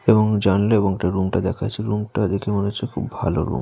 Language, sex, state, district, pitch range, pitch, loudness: Bengali, male, West Bengal, Jalpaiguri, 95-110 Hz, 100 Hz, -21 LUFS